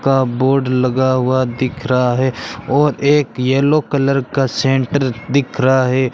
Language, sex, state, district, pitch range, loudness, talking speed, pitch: Hindi, male, Rajasthan, Bikaner, 130-135 Hz, -15 LUFS, 155 wpm, 130 Hz